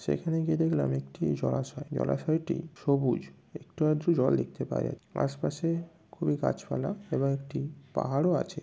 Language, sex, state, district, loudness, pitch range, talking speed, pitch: Bengali, male, West Bengal, North 24 Parganas, -30 LUFS, 130-165 Hz, 140 wpm, 155 Hz